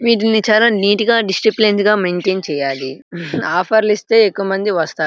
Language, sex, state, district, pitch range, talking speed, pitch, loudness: Telugu, male, Andhra Pradesh, Srikakulam, 180-220 Hz, 130 wpm, 205 Hz, -15 LUFS